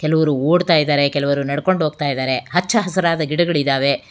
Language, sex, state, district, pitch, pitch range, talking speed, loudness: Kannada, female, Karnataka, Bangalore, 150 Hz, 140-170 Hz, 160 wpm, -17 LUFS